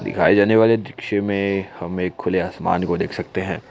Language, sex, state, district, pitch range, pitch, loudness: Hindi, male, Assam, Kamrup Metropolitan, 95-110 Hz, 100 Hz, -20 LUFS